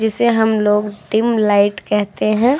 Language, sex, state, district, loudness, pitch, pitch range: Hindi, female, Uttar Pradesh, Hamirpur, -16 LUFS, 215 Hz, 210-225 Hz